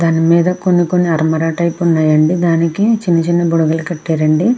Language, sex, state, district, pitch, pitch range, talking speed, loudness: Telugu, female, Andhra Pradesh, Krishna, 170 Hz, 160-175 Hz, 185 wpm, -13 LUFS